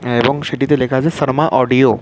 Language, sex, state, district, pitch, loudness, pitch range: Bengali, male, West Bengal, Dakshin Dinajpur, 135 Hz, -15 LUFS, 130-145 Hz